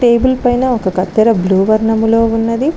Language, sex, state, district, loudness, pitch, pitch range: Telugu, female, Telangana, Mahabubabad, -13 LUFS, 225 Hz, 215-245 Hz